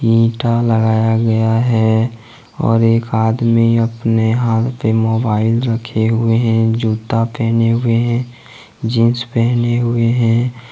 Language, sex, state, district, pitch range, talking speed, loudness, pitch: Hindi, male, Jharkhand, Ranchi, 115-120 Hz, 125 wpm, -15 LUFS, 115 Hz